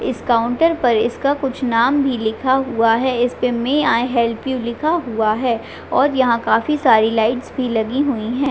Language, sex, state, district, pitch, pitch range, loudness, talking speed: Hindi, female, Chhattisgarh, Raigarh, 245 Hz, 230-270 Hz, -17 LUFS, 190 wpm